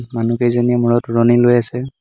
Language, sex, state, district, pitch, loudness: Assamese, male, Assam, Hailakandi, 120 Hz, -15 LUFS